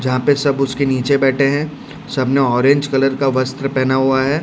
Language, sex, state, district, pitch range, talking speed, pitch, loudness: Hindi, male, Odisha, Khordha, 130-140 Hz, 215 wpm, 135 Hz, -16 LUFS